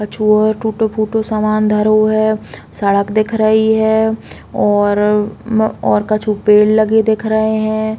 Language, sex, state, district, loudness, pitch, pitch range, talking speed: Bundeli, female, Uttar Pradesh, Hamirpur, -14 LUFS, 215 Hz, 210-220 Hz, 135 wpm